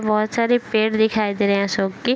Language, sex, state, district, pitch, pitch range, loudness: Hindi, female, Uttar Pradesh, Gorakhpur, 215 Hz, 200-225 Hz, -19 LUFS